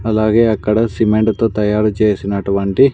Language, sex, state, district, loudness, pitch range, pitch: Telugu, male, Andhra Pradesh, Sri Satya Sai, -15 LUFS, 105-115 Hz, 110 Hz